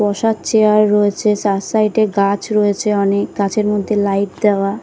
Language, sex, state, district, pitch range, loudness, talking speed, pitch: Bengali, female, Bihar, Katihar, 200-215 Hz, -15 LUFS, 160 wpm, 210 Hz